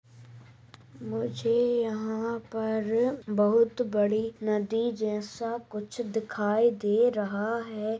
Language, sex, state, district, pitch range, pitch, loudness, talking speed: Hindi, female, Goa, North and South Goa, 205-230 Hz, 220 Hz, -28 LUFS, 90 wpm